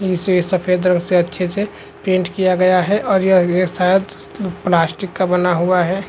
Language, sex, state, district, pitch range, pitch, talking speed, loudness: Hindi, female, Chhattisgarh, Rajnandgaon, 180-190 Hz, 185 Hz, 195 wpm, -16 LUFS